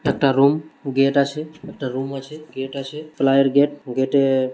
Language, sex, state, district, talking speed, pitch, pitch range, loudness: Bengali, male, West Bengal, Malda, 170 wpm, 140 Hz, 135-150 Hz, -20 LUFS